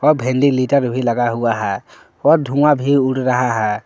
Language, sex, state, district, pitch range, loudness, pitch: Hindi, male, Jharkhand, Palamu, 120-140 Hz, -16 LUFS, 130 Hz